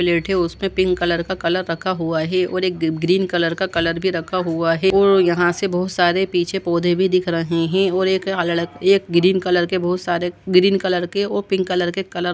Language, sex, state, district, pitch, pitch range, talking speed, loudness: Hindi, male, Uttar Pradesh, Jalaun, 180 Hz, 170-190 Hz, 215 wpm, -19 LUFS